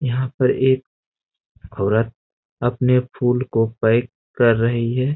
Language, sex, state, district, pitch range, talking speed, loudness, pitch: Hindi, male, Bihar, Jamui, 115-130 Hz, 130 wpm, -19 LUFS, 125 Hz